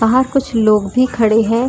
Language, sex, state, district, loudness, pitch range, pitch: Hindi, female, Maharashtra, Chandrapur, -14 LUFS, 220-255 Hz, 225 Hz